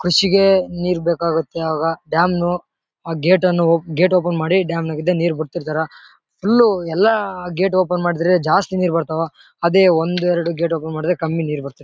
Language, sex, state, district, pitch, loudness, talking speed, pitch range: Kannada, male, Karnataka, Bellary, 175 Hz, -18 LUFS, 170 wpm, 165-185 Hz